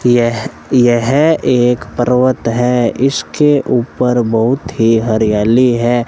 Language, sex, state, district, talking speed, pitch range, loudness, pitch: Hindi, male, Rajasthan, Bikaner, 110 wpm, 115-125 Hz, -13 LUFS, 120 Hz